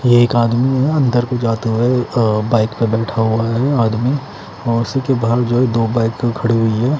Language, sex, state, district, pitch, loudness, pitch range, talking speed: Hindi, male, Chandigarh, Chandigarh, 120 Hz, -16 LUFS, 115-125 Hz, 220 wpm